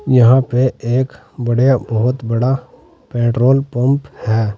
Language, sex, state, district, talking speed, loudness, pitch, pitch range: Hindi, male, Uttar Pradesh, Saharanpur, 120 wpm, -15 LUFS, 125 Hz, 120-130 Hz